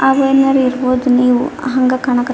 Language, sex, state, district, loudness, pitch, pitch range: Kannada, female, Karnataka, Dharwad, -13 LUFS, 255 Hz, 255-270 Hz